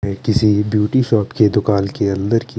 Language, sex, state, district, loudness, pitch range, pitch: Hindi, male, Chandigarh, Chandigarh, -16 LUFS, 100-110 Hz, 105 Hz